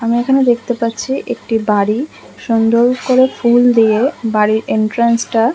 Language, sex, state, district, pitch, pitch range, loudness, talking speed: Bengali, female, West Bengal, Kolkata, 235 Hz, 225-250 Hz, -14 LUFS, 140 wpm